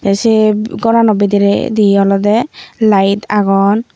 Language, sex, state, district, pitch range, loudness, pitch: Chakma, female, Tripura, Unakoti, 200-220 Hz, -12 LUFS, 210 Hz